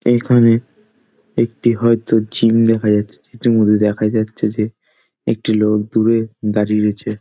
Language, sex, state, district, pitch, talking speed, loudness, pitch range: Bengali, male, West Bengal, Dakshin Dinajpur, 110 Hz, 150 wpm, -16 LUFS, 105-115 Hz